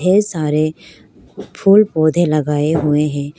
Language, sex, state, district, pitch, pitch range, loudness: Hindi, female, Arunachal Pradesh, Lower Dibang Valley, 155 Hz, 150-175 Hz, -15 LUFS